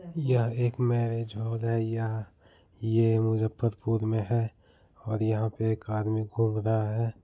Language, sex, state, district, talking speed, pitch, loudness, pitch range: Hindi, male, Bihar, Muzaffarpur, 165 wpm, 110 Hz, -29 LUFS, 110-115 Hz